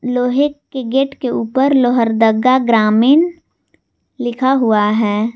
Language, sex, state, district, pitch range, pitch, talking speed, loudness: Hindi, female, Jharkhand, Garhwa, 225-270 Hz, 250 Hz, 110 wpm, -14 LUFS